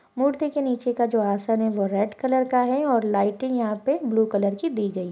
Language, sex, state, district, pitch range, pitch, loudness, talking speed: Hindi, female, Chhattisgarh, Balrampur, 205-260 Hz, 230 Hz, -23 LUFS, 245 wpm